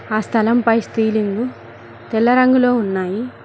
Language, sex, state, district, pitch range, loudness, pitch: Telugu, female, Telangana, Mahabubabad, 215-245 Hz, -17 LUFS, 225 Hz